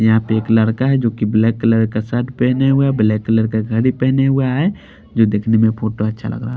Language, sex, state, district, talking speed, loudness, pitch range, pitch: Hindi, male, Bihar, Patna, 255 wpm, -16 LUFS, 110-130 Hz, 115 Hz